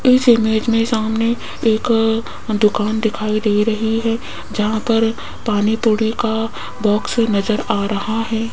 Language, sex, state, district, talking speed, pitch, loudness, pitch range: Hindi, female, Rajasthan, Jaipur, 150 wpm, 220 Hz, -18 LUFS, 215-225 Hz